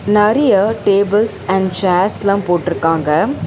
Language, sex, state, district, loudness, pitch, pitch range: Tamil, female, Tamil Nadu, Chennai, -14 LUFS, 200 Hz, 180-210 Hz